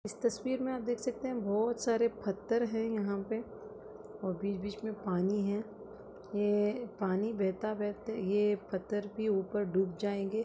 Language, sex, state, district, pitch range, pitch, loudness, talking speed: Hindi, female, Chhattisgarh, Bastar, 200-225 Hz, 210 Hz, -34 LUFS, 165 wpm